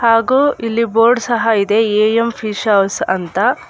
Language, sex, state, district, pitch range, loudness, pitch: Kannada, female, Karnataka, Bangalore, 210-235 Hz, -14 LUFS, 225 Hz